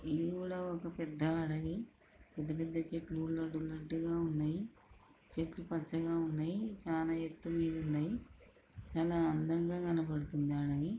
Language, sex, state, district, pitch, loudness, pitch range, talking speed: Telugu, female, Telangana, Karimnagar, 165 Hz, -38 LUFS, 155-170 Hz, 115 wpm